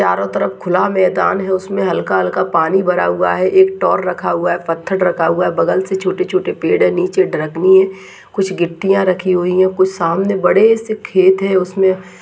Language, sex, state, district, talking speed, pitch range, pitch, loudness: Hindi, female, Uttarakhand, Tehri Garhwal, 200 wpm, 175-195 Hz, 185 Hz, -14 LUFS